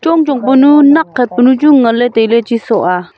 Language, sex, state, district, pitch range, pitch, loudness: Wancho, female, Arunachal Pradesh, Longding, 230-285 Hz, 250 Hz, -9 LUFS